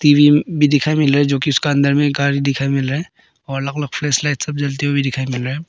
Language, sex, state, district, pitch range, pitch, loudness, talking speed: Hindi, male, Arunachal Pradesh, Papum Pare, 140-145 Hz, 145 Hz, -16 LUFS, 285 wpm